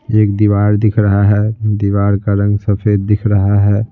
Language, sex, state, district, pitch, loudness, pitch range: Hindi, male, Bihar, Patna, 105 Hz, -13 LUFS, 100-105 Hz